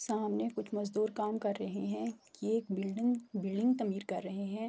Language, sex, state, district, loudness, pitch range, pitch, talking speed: Urdu, female, Andhra Pradesh, Anantapur, -35 LUFS, 190-215 Hz, 205 Hz, 190 wpm